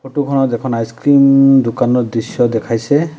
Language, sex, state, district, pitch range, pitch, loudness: Assamese, male, Assam, Sonitpur, 115-140 Hz, 130 Hz, -13 LUFS